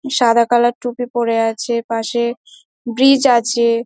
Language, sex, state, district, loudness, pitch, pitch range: Bengali, female, West Bengal, Dakshin Dinajpur, -16 LUFS, 235 Hz, 235-245 Hz